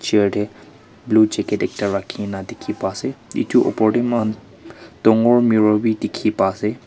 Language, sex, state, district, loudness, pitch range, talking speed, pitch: Nagamese, male, Nagaland, Kohima, -19 LUFS, 105-115 Hz, 175 wpm, 110 Hz